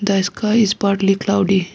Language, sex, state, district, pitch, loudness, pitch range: English, female, Arunachal Pradesh, Lower Dibang Valley, 200 Hz, -17 LUFS, 195-205 Hz